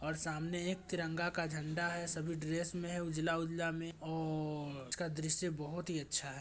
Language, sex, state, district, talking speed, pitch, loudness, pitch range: Hindi, male, Bihar, Gopalganj, 205 wpm, 165 Hz, -39 LUFS, 155-170 Hz